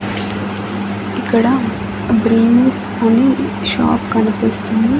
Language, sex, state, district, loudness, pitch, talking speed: Telugu, female, Andhra Pradesh, Annamaya, -15 LUFS, 225 Hz, 60 wpm